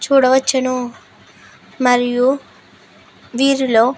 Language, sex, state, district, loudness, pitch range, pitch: Telugu, female, Andhra Pradesh, Guntur, -16 LUFS, 245-265 Hz, 255 Hz